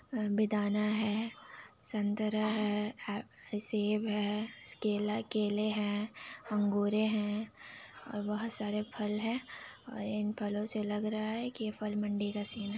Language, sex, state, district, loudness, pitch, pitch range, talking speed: Hindi, female, Bihar, Kishanganj, -34 LUFS, 210 Hz, 210-215 Hz, 140 wpm